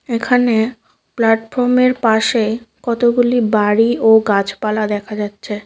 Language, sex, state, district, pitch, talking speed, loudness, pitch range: Bengali, female, West Bengal, Cooch Behar, 225 Hz, 95 wpm, -15 LUFS, 215-240 Hz